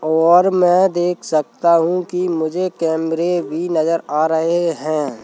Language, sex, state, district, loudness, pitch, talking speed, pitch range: Hindi, male, Madhya Pradesh, Bhopal, -17 LUFS, 170 Hz, 150 wpm, 160-175 Hz